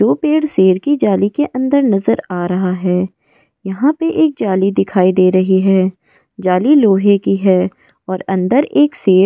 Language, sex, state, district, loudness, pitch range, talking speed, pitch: Hindi, female, Goa, North and South Goa, -14 LUFS, 185-275 Hz, 180 wpm, 195 Hz